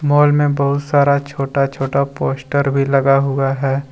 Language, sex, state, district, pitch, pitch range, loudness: Hindi, male, Jharkhand, Deoghar, 140 Hz, 135-140 Hz, -16 LUFS